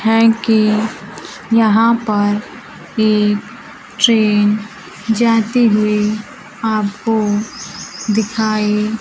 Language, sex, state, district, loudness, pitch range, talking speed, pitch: Hindi, female, Bihar, Kaimur, -15 LUFS, 210-225 Hz, 75 wpm, 215 Hz